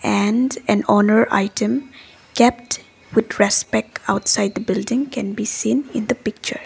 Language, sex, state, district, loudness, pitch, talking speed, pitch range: English, female, Assam, Kamrup Metropolitan, -19 LUFS, 230 Hz, 145 wpm, 210-260 Hz